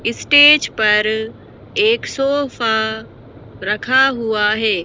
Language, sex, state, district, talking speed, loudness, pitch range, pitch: Hindi, female, Madhya Pradesh, Bhopal, 85 wpm, -15 LUFS, 215-275 Hz, 225 Hz